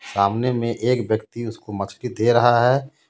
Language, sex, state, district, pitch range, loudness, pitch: Hindi, male, Jharkhand, Ranchi, 110-125 Hz, -21 LUFS, 120 Hz